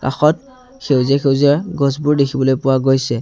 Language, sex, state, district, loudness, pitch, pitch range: Assamese, male, Assam, Sonitpur, -15 LUFS, 140 Hz, 135-150 Hz